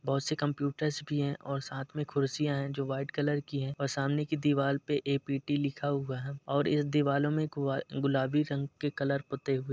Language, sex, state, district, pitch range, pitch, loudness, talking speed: Hindi, male, Uttar Pradesh, Jalaun, 140-145 Hz, 140 Hz, -32 LUFS, 220 wpm